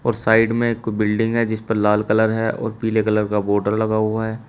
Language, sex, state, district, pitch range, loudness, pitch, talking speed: Hindi, male, Uttar Pradesh, Shamli, 110-115 Hz, -19 LUFS, 110 Hz, 255 wpm